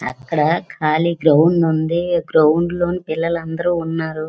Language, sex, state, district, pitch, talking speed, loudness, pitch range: Telugu, female, Andhra Pradesh, Srikakulam, 165 Hz, 125 wpm, -17 LUFS, 155-170 Hz